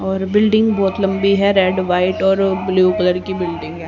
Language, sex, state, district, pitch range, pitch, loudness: Hindi, female, Haryana, Rohtak, 185-195 Hz, 190 Hz, -16 LUFS